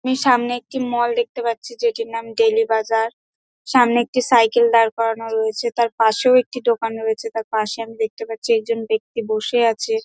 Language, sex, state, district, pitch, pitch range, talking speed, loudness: Bengali, female, West Bengal, Dakshin Dinajpur, 230 Hz, 225-250 Hz, 180 wpm, -19 LUFS